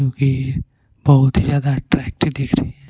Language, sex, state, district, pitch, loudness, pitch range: Hindi, male, Punjab, Pathankot, 135 Hz, -18 LUFS, 130-140 Hz